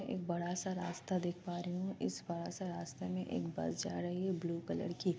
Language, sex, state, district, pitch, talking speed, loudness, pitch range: Hindi, female, Bihar, Kishanganj, 175 Hz, 240 wpm, -40 LUFS, 170-180 Hz